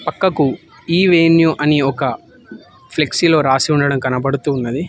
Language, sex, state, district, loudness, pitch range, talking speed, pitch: Telugu, male, Telangana, Hyderabad, -15 LUFS, 135-165 Hz, 110 wpm, 150 Hz